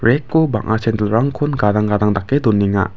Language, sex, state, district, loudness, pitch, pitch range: Garo, male, Meghalaya, West Garo Hills, -16 LUFS, 110 Hz, 105-140 Hz